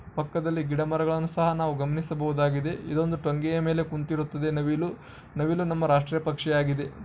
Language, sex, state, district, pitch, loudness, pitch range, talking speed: Kannada, male, Karnataka, Bijapur, 155 Hz, -27 LUFS, 150-160 Hz, 125 wpm